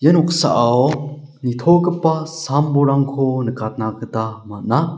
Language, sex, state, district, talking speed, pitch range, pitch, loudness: Garo, male, Meghalaya, South Garo Hills, 70 wpm, 120-160 Hz, 140 Hz, -18 LUFS